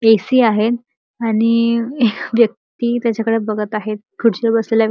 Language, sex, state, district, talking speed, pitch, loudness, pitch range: Marathi, male, Maharashtra, Chandrapur, 120 wpm, 230 Hz, -17 LUFS, 220-235 Hz